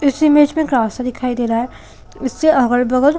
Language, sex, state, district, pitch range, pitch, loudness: Hindi, female, Chhattisgarh, Korba, 245-295 Hz, 255 Hz, -16 LUFS